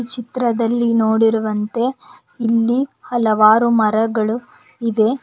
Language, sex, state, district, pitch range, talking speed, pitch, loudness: Kannada, female, Karnataka, Koppal, 220-240 Hz, 70 wpm, 230 Hz, -17 LUFS